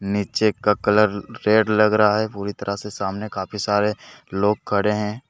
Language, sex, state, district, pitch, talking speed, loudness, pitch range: Hindi, male, Jharkhand, Deoghar, 105 Hz, 180 wpm, -21 LUFS, 100-105 Hz